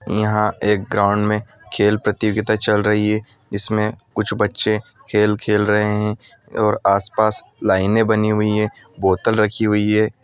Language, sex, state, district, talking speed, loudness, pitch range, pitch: Hindi, male, Andhra Pradesh, Anantapur, 165 wpm, -18 LUFS, 105-110 Hz, 105 Hz